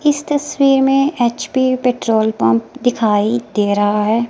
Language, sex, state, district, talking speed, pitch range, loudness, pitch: Hindi, female, Himachal Pradesh, Shimla, 140 wpm, 215-270 Hz, -15 LUFS, 240 Hz